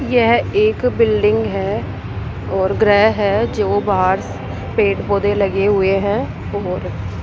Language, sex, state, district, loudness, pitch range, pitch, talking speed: Hindi, female, Rajasthan, Jaipur, -17 LUFS, 195-220 Hz, 205 Hz, 135 wpm